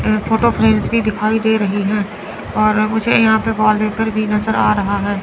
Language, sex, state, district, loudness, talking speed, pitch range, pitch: Hindi, female, Chandigarh, Chandigarh, -15 LUFS, 205 wpm, 210-220 Hz, 215 Hz